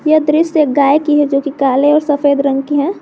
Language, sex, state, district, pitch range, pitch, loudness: Hindi, female, Jharkhand, Garhwa, 280-305 Hz, 290 Hz, -13 LUFS